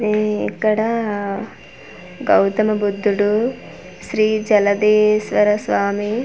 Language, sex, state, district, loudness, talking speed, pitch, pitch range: Telugu, female, Andhra Pradesh, Manyam, -18 LUFS, 65 wpm, 210 Hz, 205-215 Hz